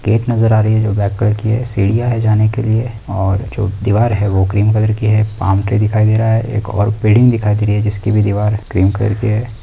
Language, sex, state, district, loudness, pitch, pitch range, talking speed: Hindi, male, Uttar Pradesh, Etah, -14 LUFS, 105 Hz, 100-110 Hz, 275 wpm